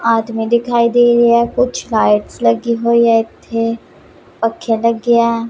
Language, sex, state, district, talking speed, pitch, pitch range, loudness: Punjabi, female, Punjab, Pathankot, 150 wpm, 230 Hz, 225-235 Hz, -14 LUFS